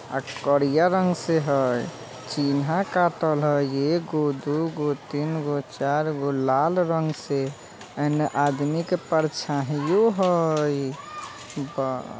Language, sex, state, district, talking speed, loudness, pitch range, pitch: Bajjika, male, Bihar, Vaishali, 105 wpm, -24 LUFS, 140-160 Hz, 150 Hz